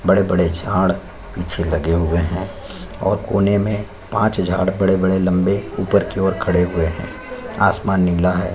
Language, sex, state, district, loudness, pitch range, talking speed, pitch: Hindi, male, Chhattisgarh, Sukma, -18 LUFS, 85-100 Hz, 155 wpm, 95 Hz